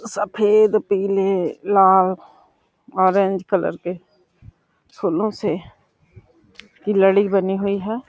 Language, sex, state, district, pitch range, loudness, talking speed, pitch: Hindi, female, Uttar Pradesh, Deoria, 190-210 Hz, -19 LUFS, 95 wpm, 195 Hz